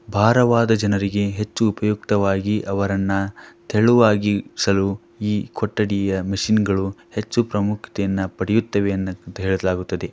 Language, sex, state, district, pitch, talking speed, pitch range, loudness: Kannada, male, Karnataka, Dharwad, 100 Hz, 85 wpm, 95-105 Hz, -20 LUFS